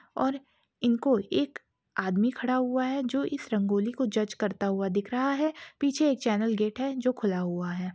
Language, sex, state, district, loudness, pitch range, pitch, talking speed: Hindi, female, Chhattisgarh, Raigarh, -28 LUFS, 205-275 Hz, 245 Hz, 195 wpm